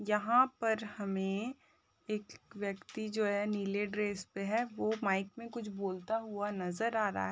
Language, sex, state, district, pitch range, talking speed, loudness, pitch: Hindi, male, Chhattisgarh, Balrampur, 200-225 Hz, 165 wpm, -35 LUFS, 210 Hz